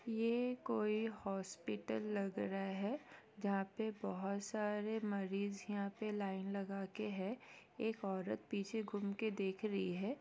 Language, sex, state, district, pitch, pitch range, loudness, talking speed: Hindi, female, Bihar, East Champaran, 200 Hz, 195-220 Hz, -42 LUFS, 145 wpm